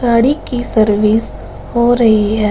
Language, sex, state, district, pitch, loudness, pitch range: Hindi, female, Punjab, Fazilka, 230 Hz, -13 LUFS, 215-240 Hz